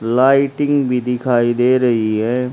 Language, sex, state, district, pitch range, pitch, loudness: Hindi, male, Haryana, Rohtak, 120-130 Hz, 125 Hz, -16 LUFS